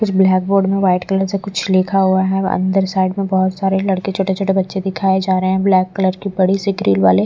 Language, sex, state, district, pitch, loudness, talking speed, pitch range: Hindi, female, Bihar, Patna, 190 Hz, -16 LUFS, 250 wpm, 185-195 Hz